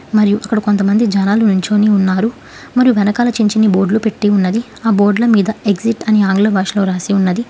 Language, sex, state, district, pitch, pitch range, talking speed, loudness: Telugu, female, Telangana, Hyderabad, 210 Hz, 200-220 Hz, 170 wpm, -13 LUFS